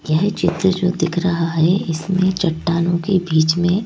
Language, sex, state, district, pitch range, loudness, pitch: Hindi, female, Madhya Pradesh, Bhopal, 165-185 Hz, -18 LUFS, 175 Hz